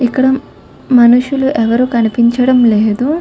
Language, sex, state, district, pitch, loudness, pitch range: Telugu, female, Telangana, Karimnagar, 245 Hz, -11 LUFS, 235-260 Hz